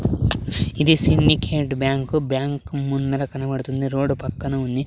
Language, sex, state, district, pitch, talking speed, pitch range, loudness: Telugu, male, Andhra Pradesh, Sri Satya Sai, 135 Hz, 110 wpm, 135-140 Hz, -20 LUFS